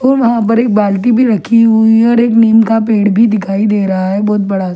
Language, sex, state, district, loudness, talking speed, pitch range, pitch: Hindi, female, Delhi, New Delhi, -10 LUFS, 265 wpm, 205-230 Hz, 220 Hz